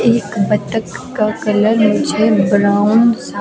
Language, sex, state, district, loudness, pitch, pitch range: Hindi, female, Himachal Pradesh, Shimla, -14 LUFS, 215 Hz, 205-225 Hz